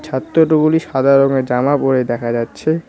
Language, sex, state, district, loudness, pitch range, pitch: Bengali, male, West Bengal, Cooch Behar, -15 LUFS, 130-155 Hz, 135 Hz